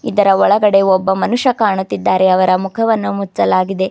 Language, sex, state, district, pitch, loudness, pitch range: Kannada, female, Karnataka, Bidar, 195 Hz, -14 LUFS, 190-210 Hz